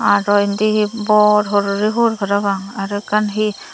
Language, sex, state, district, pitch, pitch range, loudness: Chakma, female, Tripura, Dhalai, 205 Hz, 200-215 Hz, -16 LUFS